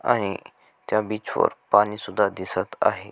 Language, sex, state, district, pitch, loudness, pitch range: Marathi, male, Maharashtra, Sindhudurg, 105 Hz, -24 LUFS, 95-105 Hz